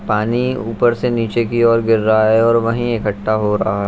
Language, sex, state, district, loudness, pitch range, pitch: Hindi, male, Bihar, Saharsa, -16 LUFS, 110-120 Hz, 115 Hz